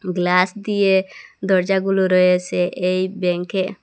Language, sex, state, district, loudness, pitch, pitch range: Bengali, female, Assam, Hailakandi, -18 LUFS, 185 Hz, 180-195 Hz